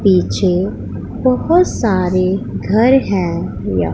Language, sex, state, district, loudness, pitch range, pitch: Hindi, female, Punjab, Pathankot, -15 LUFS, 180-230 Hz, 190 Hz